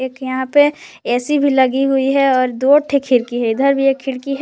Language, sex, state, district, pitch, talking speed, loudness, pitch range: Hindi, female, Jharkhand, Palamu, 270 Hz, 245 wpm, -15 LUFS, 260-280 Hz